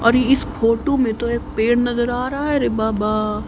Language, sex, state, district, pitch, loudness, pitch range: Hindi, female, Haryana, Rohtak, 235 Hz, -19 LUFS, 220-255 Hz